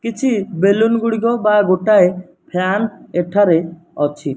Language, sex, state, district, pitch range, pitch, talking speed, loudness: Odia, male, Odisha, Nuapada, 175-220 Hz, 195 Hz, 110 wpm, -16 LUFS